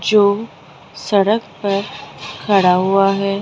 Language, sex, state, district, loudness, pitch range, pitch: Hindi, female, Rajasthan, Jaipur, -16 LUFS, 195-205 Hz, 200 Hz